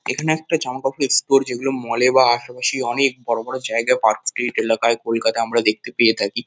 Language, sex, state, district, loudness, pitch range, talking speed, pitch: Bengali, male, West Bengal, Kolkata, -19 LUFS, 115-135 Hz, 175 wpm, 120 Hz